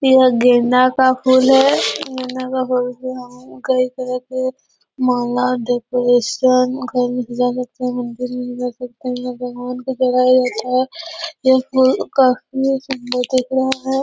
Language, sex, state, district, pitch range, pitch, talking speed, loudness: Hindi, female, Chhattisgarh, Korba, 250-260 Hz, 255 Hz, 160 wpm, -17 LUFS